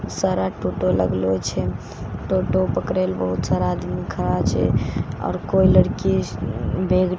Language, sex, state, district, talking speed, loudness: Maithili, female, Bihar, Katihar, 150 wpm, -21 LUFS